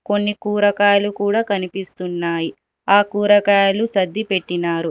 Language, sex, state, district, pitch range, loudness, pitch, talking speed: Telugu, male, Telangana, Hyderabad, 185-205 Hz, -18 LUFS, 200 Hz, 100 wpm